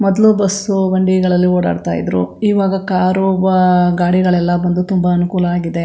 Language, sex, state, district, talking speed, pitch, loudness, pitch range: Kannada, female, Karnataka, Chamarajanagar, 135 wpm, 180 Hz, -14 LUFS, 175-190 Hz